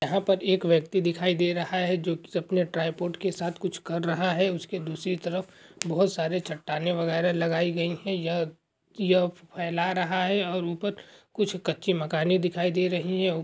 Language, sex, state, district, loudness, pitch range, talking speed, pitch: Hindi, male, Uttarakhand, Uttarkashi, -27 LUFS, 170-185 Hz, 190 wpm, 180 Hz